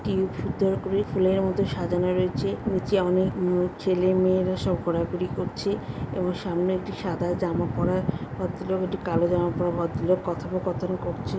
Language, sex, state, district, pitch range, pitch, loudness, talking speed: Bengali, female, West Bengal, Jhargram, 175-185 Hz, 180 Hz, -26 LUFS, 145 wpm